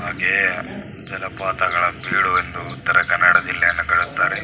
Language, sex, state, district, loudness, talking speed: Kannada, male, Karnataka, Belgaum, -18 LUFS, 120 wpm